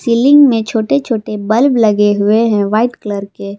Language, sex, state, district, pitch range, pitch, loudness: Hindi, female, Jharkhand, Palamu, 205-235 Hz, 220 Hz, -12 LUFS